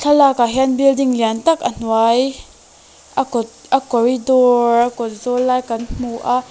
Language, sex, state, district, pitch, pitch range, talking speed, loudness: Mizo, female, Mizoram, Aizawl, 245 Hz, 235-265 Hz, 175 wpm, -16 LUFS